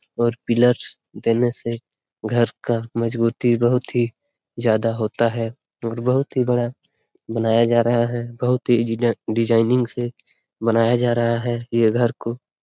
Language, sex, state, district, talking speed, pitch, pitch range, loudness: Hindi, male, Jharkhand, Sahebganj, 145 wpm, 120 Hz, 115-120 Hz, -21 LUFS